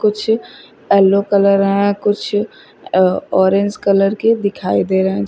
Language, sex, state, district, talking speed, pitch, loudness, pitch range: Hindi, female, Uttar Pradesh, Shamli, 135 wpm, 200 Hz, -15 LUFS, 190-205 Hz